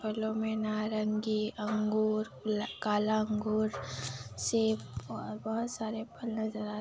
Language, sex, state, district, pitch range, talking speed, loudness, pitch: Hindi, female, Bihar, Kishanganj, 210-220 Hz, 125 wpm, -33 LUFS, 215 Hz